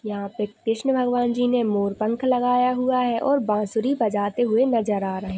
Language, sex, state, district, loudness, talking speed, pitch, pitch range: Hindi, female, Chhattisgarh, Jashpur, -22 LUFS, 200 wpm, 230 Hz, 210-250 Hz